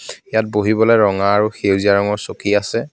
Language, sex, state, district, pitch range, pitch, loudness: Assamese, male, Assam, Kamrup Metropolitan, 100-110 Hz, 105 Hz, -16 LUFS